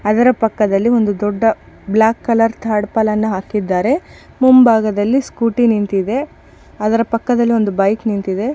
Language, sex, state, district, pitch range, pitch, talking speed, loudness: Kannada, female, Karnataka, Bijapur, 210-235 Hz, 220 Hz, 105 wpm, -15 LUFS